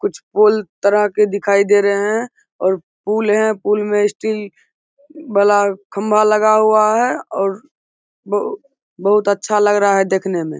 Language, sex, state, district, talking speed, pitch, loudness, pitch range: Hindi, male, Bihar, Begusarai, 165 wpm, 210 Hz, -16 LUFS, 200-215 Hz